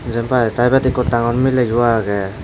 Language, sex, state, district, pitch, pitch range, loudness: Chakma, male, Tripura, Dhalai, 120 Hz, 115-125 Hz, -16 LUFS